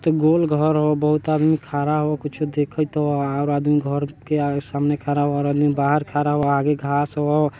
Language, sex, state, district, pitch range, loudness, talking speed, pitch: Bajjika, male, Bihar, Vaishali, 145-150 Hz, -20 LUFS, 200 wpm, 145 Hz